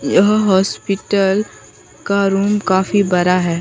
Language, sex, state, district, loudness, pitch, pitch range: Hindi, female, Bihar, Katihar, -15 LUFS, 195 Hz, 190-205 Hz